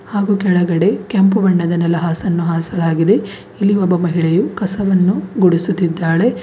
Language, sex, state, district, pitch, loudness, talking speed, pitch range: Kannada, female, Karnataka, Bidar, 180 Hz, -15 LUFS, 105 wpm, 170-200 Hz